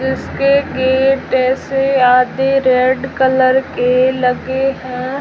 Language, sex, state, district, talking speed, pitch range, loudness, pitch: Hindi, female, Rajasthan, Jaisalmer, 105 wpm, 255-270 Hz, -14 LUFS, 260 Hz